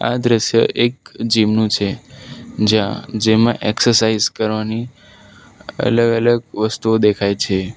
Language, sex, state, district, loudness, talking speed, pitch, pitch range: Gujarati, male, Gujarat, Valsad, -16 LUFS, 110 wpm, 110 Hz, 105-115 Hz